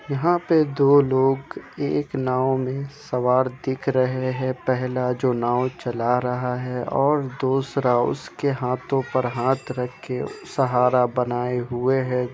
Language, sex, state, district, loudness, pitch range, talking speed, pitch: Hindi, male, Bihar, Kishanganj, -23 LUFS, 125-135 Hz, 140 wpm, 130 Hz